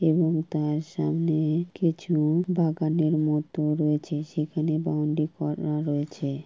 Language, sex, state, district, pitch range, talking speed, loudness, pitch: Bengali, female, West Bengal, Purulia, 150-160 Hz, 110 wpm, -26 LUFS, 155 Hz